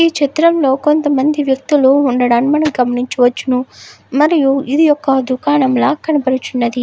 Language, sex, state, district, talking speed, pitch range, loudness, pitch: Telugu, female, Andhra Pradesh, Guntur, 125 wpm, 255-295 Hz, -13 LUFS, 270 Hz